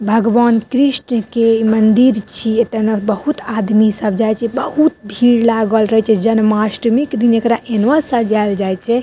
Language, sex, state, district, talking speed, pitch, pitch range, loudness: Maithili, female, Bihar, Madhepura, 165 wpm, 225 Hz, 215-240 Hz, -14 LUFS